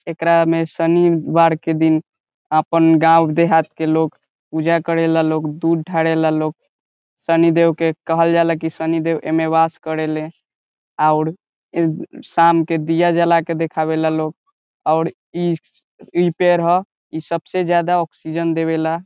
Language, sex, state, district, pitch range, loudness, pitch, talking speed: Bhojpuri, male, Bihar, Saran, 160-170 Hz, -17 LUFS, 165 Hz, 140 wpm